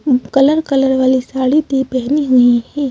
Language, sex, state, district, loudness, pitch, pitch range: Hindi, female, Madhya Pradesh, Bhopal, -14 LUFS, 265 Hz, 255-280 Hz